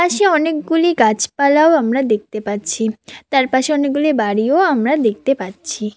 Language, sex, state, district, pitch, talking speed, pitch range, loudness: Bengali, female, West Bengal, Cooch Behar, 270 Hz, 130 wpm, 215-305 Hz, -16 LUFS